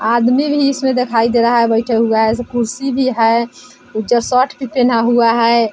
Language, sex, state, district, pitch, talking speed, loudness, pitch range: Hindi, female, Bihar, Vaishali, 235 Hz, 210 wpm, -14 LUFS, 230-250 Hz